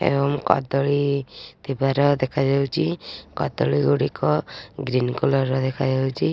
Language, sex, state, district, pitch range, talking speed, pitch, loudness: Odia, female, Odisha, Nuapada, 130-140 Hz, 95 wpm, 135 Hz, -22 LUFS